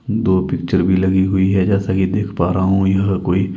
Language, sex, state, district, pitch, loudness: Hindi, male, Himachal Pradesh, Shimla, 95 Hz, -16 LUFS